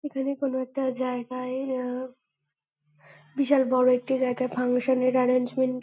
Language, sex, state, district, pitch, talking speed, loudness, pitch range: Bengali, female, West Bengal, Kolkata, 255 Hz, 125 wpm, -26 LUFS, 250-260 Hz